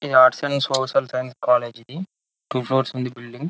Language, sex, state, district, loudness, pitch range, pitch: Telugu, male, Telangana, Karimnagar, -21 LUFS, 125-135 Hz, 130 Hz